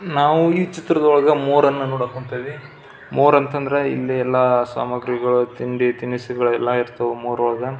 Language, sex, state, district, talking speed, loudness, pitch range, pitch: Kannada, male, Karnataka, Belgaum, 130 wpm, -19 LUFS, 125-145 Hz, 130 Hz